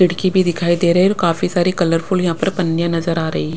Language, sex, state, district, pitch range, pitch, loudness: Hindi, female, Punjab, Pathankot, 170-185 Hz, 175 Hz, -16 LUFS